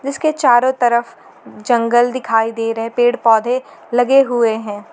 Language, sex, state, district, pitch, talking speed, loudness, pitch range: Hindi, female, Jharkhand, Garhwa, 240 Hz, 145 wpm, -15 LUFS, 225-250 Hz